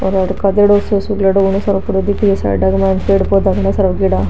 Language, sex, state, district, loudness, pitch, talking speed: Marwari, female, Rajasthan, Nagaur, -13 LUFS, 195 Hz, 180 wpm